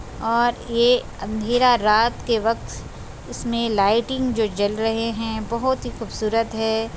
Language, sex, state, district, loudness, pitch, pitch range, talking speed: Hindi, female, Chhattisgarh, Bastar, -21 LUFS, 225 Hz, 220-235 Hz, 140 wpm